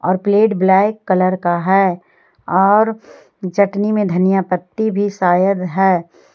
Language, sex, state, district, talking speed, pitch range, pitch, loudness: Hindi, female, Jharkhand, Ranchi, 130 wpm, 185-205 Hz, 190 Hz, -15 LUFS